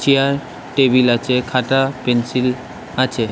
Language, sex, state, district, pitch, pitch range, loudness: Bengali, male, West Bengal, Kolkata, 130 Hz, 125-135 Hz, -17 LUFS